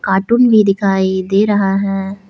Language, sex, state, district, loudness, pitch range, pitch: Hindi, male, Jharkhand, Palamu, -13 LUFS, 195-205 Hz, 195 Hz